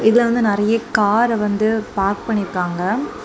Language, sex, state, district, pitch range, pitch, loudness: Tamil, female, Tamil Nadu, Kanyakumari, 205-230 Hz, 215 Hz, -18 LUFS